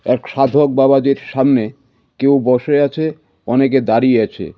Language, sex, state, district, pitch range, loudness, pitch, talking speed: Bengali, male, West Bengal, Cooch Behar, 125-140 Hz, -14 LUFS, 135 Hz, 130 wpm